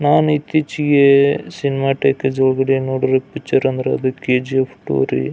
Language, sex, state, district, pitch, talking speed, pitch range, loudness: Kannada, male, Karnataka, Belgaum, 135 Hz, 125 wpm, 130-140 Hz, -17 LUFS